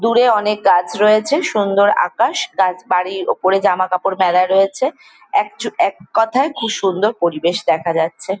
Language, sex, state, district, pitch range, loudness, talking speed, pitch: Bengali, female, West Bengal, Jalpaiguri, 185-230 Hz, -16 LUFS, 135 wpm, 200 Hz